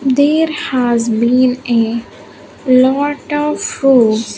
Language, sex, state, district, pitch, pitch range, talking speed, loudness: English, female, Andhra Pradesh, Sri Satya Sai, 255 Hz, 235-285 Hz, 95 wpm, -13 LUFS